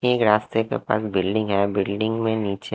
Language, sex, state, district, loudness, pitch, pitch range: Hindi, male, Haryana, Rohtak, -22 LUFS, 110 Hz, 100-110 Hz